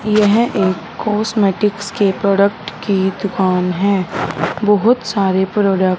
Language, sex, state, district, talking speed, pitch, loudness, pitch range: Hindi, male, Punjab, Fazilka, 120 wpm, 200 Hz, -16 LUFS, 190-210 Hz